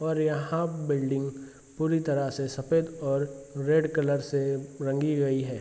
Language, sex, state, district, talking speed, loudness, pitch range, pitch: Hindi, male, Bihar, Sitamarhi, 150 wpm, -28 LUFS, 135-155 Hz, 140 Hz